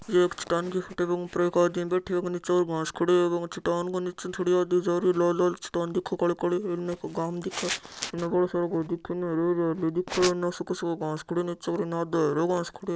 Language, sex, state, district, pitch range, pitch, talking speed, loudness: Marwari, male, Rajasthan, Churu, 170-180 Hz, 175 Hz, 230 wpm, -27 LUFS